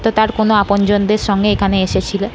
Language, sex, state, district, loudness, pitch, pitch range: Bengali, female, West Bengal, North 24 Parganas, -14 LUFS, 205 Hz, 200-215 Hz